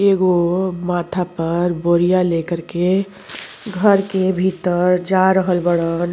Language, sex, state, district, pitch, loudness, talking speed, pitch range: Bhojpuri, female, Uttar Pradesh, Gorakhpur, 180 Hz, -17 LUFS, 115 wpm, 175-190 Hz